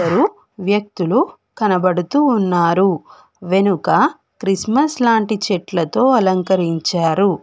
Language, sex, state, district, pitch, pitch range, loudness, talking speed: Telugu, female, Telangana, Hyderabad, 195 Hz, 180-220 Hz, -17 LUFS, 75 wpm